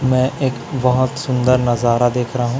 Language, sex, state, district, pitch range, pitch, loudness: Hindi, male, Chhattisgarh, Raipur, 120-130 Hz, 125 Hz, -17 LUFS